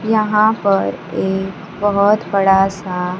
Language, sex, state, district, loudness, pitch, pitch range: Hindi, female, Bihar, Kaimur, -16 LUFS, 195 Hz, 190-210 Hz